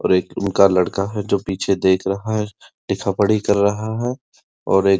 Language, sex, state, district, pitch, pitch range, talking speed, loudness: Hindi, male, Uttar Pradesh, Muzaffarnagar, 100 Hz, 95-105 Hz, 215 wpm, -19 LUFS